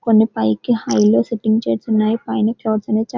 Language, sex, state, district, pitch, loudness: Telugu, female, Telangana, Karimnagar, 220 Hz, -17 LUFS